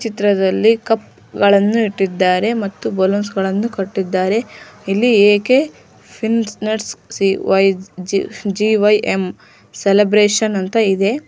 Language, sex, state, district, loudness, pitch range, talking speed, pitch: Kannada, female, Karnataka, Dharwad, -16 LUFS, 195-220 Hz, 100 wpm, 205 Hz